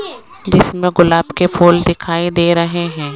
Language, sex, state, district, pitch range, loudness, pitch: Hindi, female, Rajasthan, Jaipur, 170-175 Hz, -13 LUFS, 170 Hz